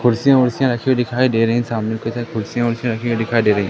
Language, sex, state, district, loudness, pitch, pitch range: Hindi, male, Madhya Pradesh, Katni, -18 LUFS, 120 Hz, 115-125 Hz